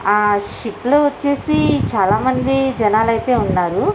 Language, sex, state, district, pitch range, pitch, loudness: Telugu, female, Andhra Pradesh, Visakhapatnam, 210-270 Hz, 245 Hz, -16 LUFS